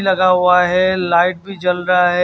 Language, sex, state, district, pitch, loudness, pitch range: Hindi, male, Chhattisgarh, Raipur, 180 Hz, -14 LUFS, 180-185 Hz